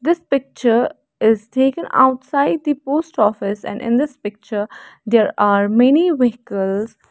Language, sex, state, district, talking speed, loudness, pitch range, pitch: English, female, Haryana, Rohtak, 135 wpm, -17 LUFS, 210-275 Hz, 240 Hz